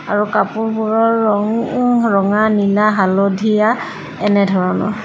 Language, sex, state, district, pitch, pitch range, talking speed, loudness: Assamese, female, Assam, Sonitpur, 215 Hz, 200-225 Hz, 85 wpm, -15 LUFS